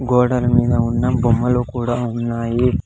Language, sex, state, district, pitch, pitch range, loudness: Telugu, male, Andhra Pradesh, Sri Satya Sai, 120 Hz, 120-125 Hz, -18 LUFS